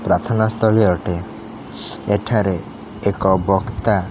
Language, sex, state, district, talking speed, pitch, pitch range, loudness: Odia, male, Odisha, Khordha, 90 wpm, 100 Hz, 95-110 Hz, -19 LUFS